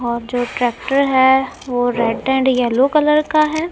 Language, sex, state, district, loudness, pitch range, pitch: Hindi, female, Punjab, Kapurthala, -16 LUFS, 245-280 Hz, 260 Hz